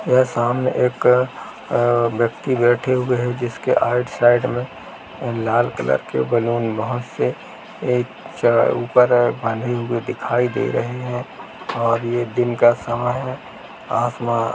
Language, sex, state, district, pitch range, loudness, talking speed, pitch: Hindi, male, Bihar, Gaya, 120-125 Hz, -19 LUFS, 145 wpm, 120 Hz